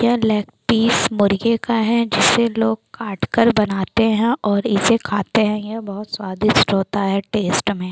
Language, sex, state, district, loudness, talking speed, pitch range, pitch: Hindi, female, Bihar, Lakhisarai, -18 LUFS, 145 wpm, 200-230 Hz, 215 Hz